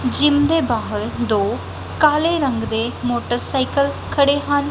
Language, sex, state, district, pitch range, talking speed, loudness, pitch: Punjabi, female, Punjab, Kapurthala, 240-290 Hz, 125 wpm, -19 LUFS, 280 Hz